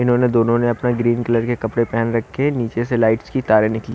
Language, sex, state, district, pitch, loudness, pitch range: Hindi, male, Haryana, Rohtak, 120 Hz, -18 LUFS, 115-120 Hz